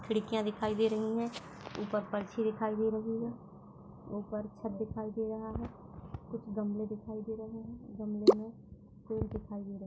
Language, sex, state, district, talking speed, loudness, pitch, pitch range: Hindi, female, Uttar Pradesh, Jyotiba Phule Nagar, 180 wpm, -36 LUFS, 220 Hz, 210-220 Hz